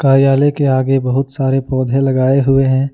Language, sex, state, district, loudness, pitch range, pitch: Hindi, male, Jharkhand, Ranchi, -14 LUFS, 130-135 Hz, 135 Hz